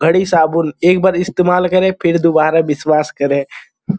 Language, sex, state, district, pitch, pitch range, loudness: Hindi, male, Uttar Pradesh, Gorakhpur, 165 Hz, 155-180 Hz, -14 LUFS